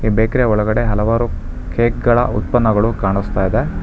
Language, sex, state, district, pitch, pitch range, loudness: Kannada, male, Karnataka, Bangalore, 110 Hz, 95-120 Hz, -16 LUFS